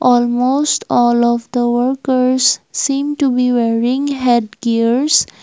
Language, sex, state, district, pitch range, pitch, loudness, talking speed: English, female, Assam, Kamrup Metropolitan, 240-265 Hz, 250 Hz, -15 LUFS, 120 wpm